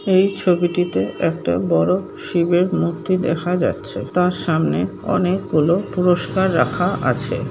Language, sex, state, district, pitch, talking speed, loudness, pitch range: Bengali, female, West Bengal, Paschim Medinipur, 175 Hz, 110 wpm, -19 LUFS, 150-180 Hz